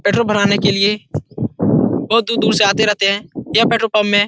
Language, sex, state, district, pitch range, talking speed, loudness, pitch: Hindi, male, Bihar, Jahanabad, 205-225 Hz, 210 wpm, -15 LUFS, 210 Hz